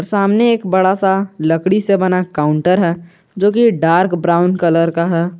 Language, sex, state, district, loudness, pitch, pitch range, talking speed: Hindi, male, Jharkhand, Garhwa, -14 LUFS, 180 Hz, 170-195 Hz, 180 wpm